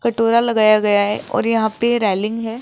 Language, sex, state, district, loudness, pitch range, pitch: Hindi, female, Rajasthan, Jaipur, -16 LUFS, 210-235 Hz, 225 Hz